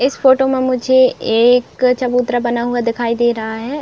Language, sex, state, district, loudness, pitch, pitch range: Hindi, female, Uttar Pradesh, Budaun, -15 LUFS, 250 Hz, 235-260 Hz